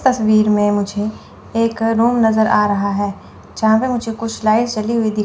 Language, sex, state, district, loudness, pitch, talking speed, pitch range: Hindi, female, Chandigarh, Chandigarh, -16 LUFS, 220 Hz, 195 wpm, 210-230 Hz